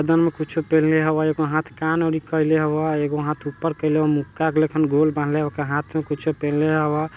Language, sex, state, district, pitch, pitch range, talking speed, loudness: Bajjika, male, Bihar, Vaishali, 155 Hz, 150-160 Hz, 235 wpm, -21 LUFS